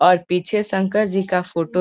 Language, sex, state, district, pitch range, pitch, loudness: Hindi, male, Bihar, Gopalganj, 180-195 Hz, 180 Hz, -20 LUFS